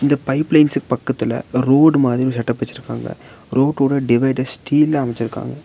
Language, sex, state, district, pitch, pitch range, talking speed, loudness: Tamil, male, Tamil Nadu, Nilgiris, 135 Hz, 120-145 Hz, 140 wpm, -17 LUFS